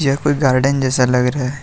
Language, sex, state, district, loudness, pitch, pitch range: Hindi, male, Jharkhand, Deoghar, -16 LUFS, 130 Hz, 130-140 Hz